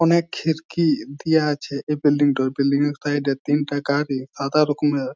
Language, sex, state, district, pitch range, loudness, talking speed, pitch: Bengali, male, West Bengal, Jhargram, 140-150 Hz, -21 LUFS, 175 wpm, 145 Hz